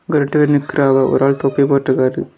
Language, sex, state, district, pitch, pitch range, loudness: Tamil, male, Tamil Nadu, Kanyakumari, 140 Hz, 135-145 Hz, -15 LUFS